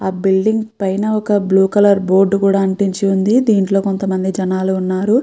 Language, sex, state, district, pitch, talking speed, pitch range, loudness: Telugu, female, Andhra Pradesh, Chittoor, 195 Hz, 170 wpm, 190-205 Hz, -15 LUFS